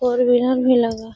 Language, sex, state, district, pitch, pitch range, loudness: Hindi, female, Bihar, Gaya, 245 Hz, 230-250 Hz, -17 LUFS